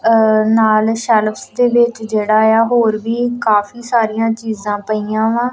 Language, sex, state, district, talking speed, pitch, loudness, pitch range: Punjabi, female, Punjab, Kapurthala, 140 wpm, 220 Hz, -15 LUFS, 215-235 Hz